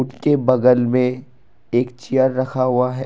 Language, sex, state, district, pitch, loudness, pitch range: Hindi, male, Assam, Kamrup Metropolitan, 125 Hz, -18 LUFS, 125-130 Hz